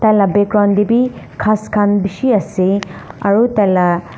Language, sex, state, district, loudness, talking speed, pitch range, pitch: Nagamese, female, Nagaland, Dimapur, -14 LUFS, 160 wpm, 200-215 Hz, 205 Hz